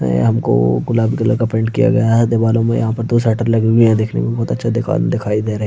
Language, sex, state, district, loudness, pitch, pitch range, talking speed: Hindi, male, Bihar, Purnia, -15 LUFS, 115 Hz, 105-115 Hz, 295 wpm